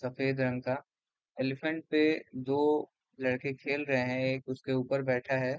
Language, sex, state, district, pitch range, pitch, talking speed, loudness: Hindi, male, Bihar, Gopalganj, 130-140 Hz, 130 Hz, 180 wpm, -32 LUFS